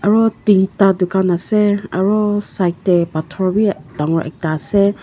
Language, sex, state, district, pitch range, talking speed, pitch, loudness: Nagamese, female, Nagaland, Kohima, 175-205 Hz, 155 wpm, 190 Hz, -16 LUFS